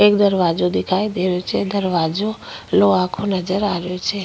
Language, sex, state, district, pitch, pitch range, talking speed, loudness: Rajasthani, female, Rajasthan, Nagaur, 190 Hz, 180-200 Hz, 185 wpm, -19 LUFS